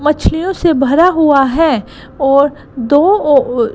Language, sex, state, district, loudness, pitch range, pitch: Hindi, female, Gujarat, Gandhinagar, -12 LUFS, 270-325 Hz, 290 Hz